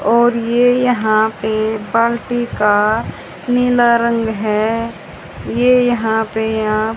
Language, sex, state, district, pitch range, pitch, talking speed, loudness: Hindi, female, Haryana, Jhajjar, 220-240 Hz, 230 Hz, 120 wpm, -15 LUFS